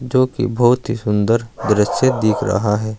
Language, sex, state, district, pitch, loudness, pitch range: Hindi, male, Uttar Pradesh, Saharanpur, 115 Hz, -17 LUFS, 105-125 Hz